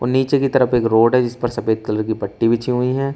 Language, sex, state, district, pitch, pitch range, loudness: Hindi, male, Uttar Pradesh, Shamli, 120 Hz, 115-130 Hz, -18 LUFS